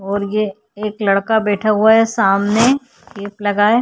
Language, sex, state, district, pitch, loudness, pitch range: Hindi, female, Uttar Pradesh, Hamirpur, 210 Hz, -16 LUFS, 200-220 Hz